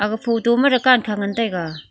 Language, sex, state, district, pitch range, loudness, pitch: Wancho, female, Arunachal Pradesh, Longding, 200-240 Hz, -18 LUFS, 225 Hz